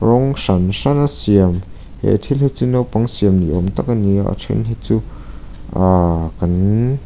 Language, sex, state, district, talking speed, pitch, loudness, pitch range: Mizo, male, Mizoram, Aizawl, 180 wpm, 100 Hz, -16 LUFS, 90-120 Hz